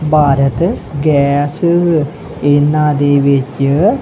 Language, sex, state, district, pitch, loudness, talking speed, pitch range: Punjabi, male, Punjab, Kapurthala, 145 Hz, -13 LUFS, 75 wpm, 140-155 Hz